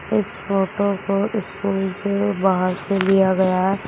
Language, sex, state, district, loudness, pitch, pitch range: Hindi, male, Uttar Pradesh, Shamli, -20 LUFS, 195 Hz, 190-200 Hz